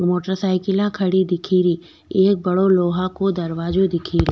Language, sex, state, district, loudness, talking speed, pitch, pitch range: Rajasthani, female, Rajasthan, Nagaur, -19 LUFS, 95 wpm, 185 Hz, 175-190 Hz